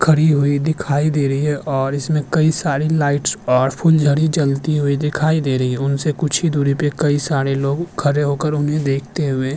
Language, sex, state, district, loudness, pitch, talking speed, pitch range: Hindi, male, Uttar Pradesh, Hamirpur, -17 LUFS, 145 Hz, 205 wpm, 140-155 Hz